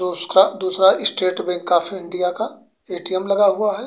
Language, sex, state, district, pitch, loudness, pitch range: Bhojpuri, male, Uttar Pradesh, Gorakhpur, 185 Hz, -18 LUFS, 180-195 Hz